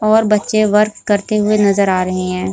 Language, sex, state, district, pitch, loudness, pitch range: Hindi, female, Bihar, Supaul, 210 Hz, -14 LUFS, 190-215 Hz